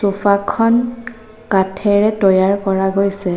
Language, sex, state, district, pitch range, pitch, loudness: Assamese, female, Assam, Sonitpur, 195-220 Hz, 200 Hz, -15 LUFS